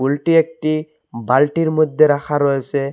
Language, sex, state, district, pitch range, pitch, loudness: Bengali, male, Assam, Hailakandi, 140-155 Hz, 150 Hz, -17 LUFS